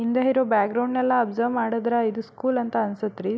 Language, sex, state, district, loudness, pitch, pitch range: Kannada, female, Karnataka, Belgaum, -23 LUFS, 235 Hz, 220-250 Hz